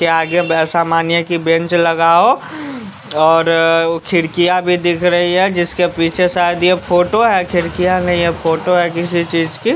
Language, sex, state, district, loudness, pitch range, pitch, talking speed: Hindi, male, Bihar, West Champaran, -14 LUFS, 165-180 Hz, 175 Hz, 180 wpm